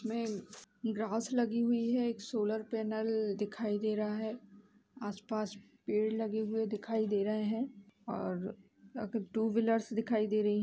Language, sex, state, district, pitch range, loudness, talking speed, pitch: Hindi, female, Uttar Pradesh, Jalaun, 210-225 Hz, -35 LUFS, 150 wpm, 220 Hz